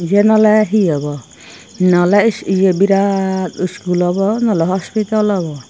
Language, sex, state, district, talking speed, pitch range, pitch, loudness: Chakma, female, Tripura, Dhalai, 125 wpm, 180-210 Hz, 190 Hz, -14 LUFS